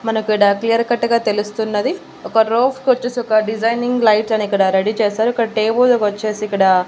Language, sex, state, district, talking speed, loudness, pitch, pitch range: Telugu, female, Andhra Pradesh, Annamaya, 165 wpm, -16 LUFS, 220 Hz, 210-235 Hz